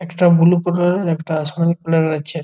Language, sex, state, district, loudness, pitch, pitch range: Bengali, male, West Bengal, Jhargram, -16 LUFS, 170 Hz, 160-175 Hz